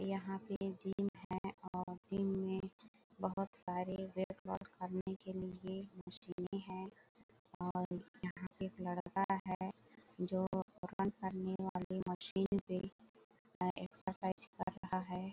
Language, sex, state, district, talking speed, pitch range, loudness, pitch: Hindi, female, Chhattisgarh, Bilaspur, 125 wpm, 185-195 Hz, -43 LUFS, 190 Hz